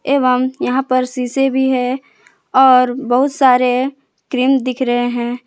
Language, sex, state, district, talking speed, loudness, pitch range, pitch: Hindi, female, Jharkhand, Palamu, 145 wpm, -15 LUFS, 250-265 Hz, 255 Hz